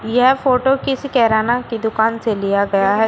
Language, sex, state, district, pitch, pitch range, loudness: Hindi, female, Uttar Pradesh, Shamli, 230 Hz, 220-255 Hz, -16 LUFS